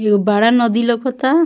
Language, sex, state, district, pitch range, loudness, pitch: Bhojpuri, female, Bihar, Muzaffarpur, 215-260 Hz, -15 LUFS, 235 Hz